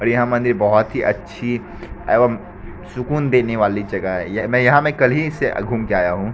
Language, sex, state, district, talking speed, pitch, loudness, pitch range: Hindi, male, Bihar, Katihar, 210 wpm, 120 Hz, -18 LUFS, 105-125 Hz